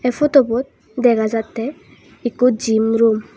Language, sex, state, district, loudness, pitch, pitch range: Chakma, female, Tripura, West Tripura, -17 LUFS, 240 Hz, 225-250 Hz